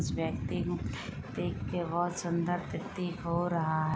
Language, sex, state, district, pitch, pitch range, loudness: Hindi, female, Uttar Pradesh, Muzaffarnagar, 175 Hz, 170-175 Hz, -34 LUFS